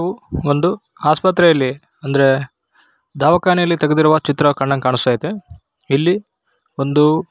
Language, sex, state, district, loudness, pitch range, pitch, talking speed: Kannada, male, Karnataka, Raichur, -16 LUFS, 140-175 Hz, 150 Hz, 100 wpm